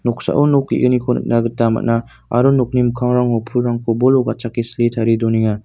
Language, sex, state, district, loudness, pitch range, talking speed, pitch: Garo, male, Meghalaya, North Garo Hills, -16 LUFS, 115-125 Hz, 160 wpm, 120 Hz